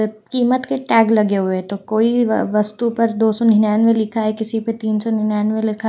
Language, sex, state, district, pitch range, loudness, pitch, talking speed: Hindi, female, Haryana, Jhajjar, 215-230 Hz, -17 LUFS, 220 Hz, 225 wpm